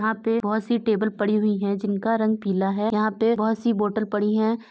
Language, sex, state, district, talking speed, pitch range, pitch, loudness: Bhojpuri, female, Uttar Pradesh, Gorakhpur, 240 wpm, 210-225 Hz, 215 Hz, -23 LUFS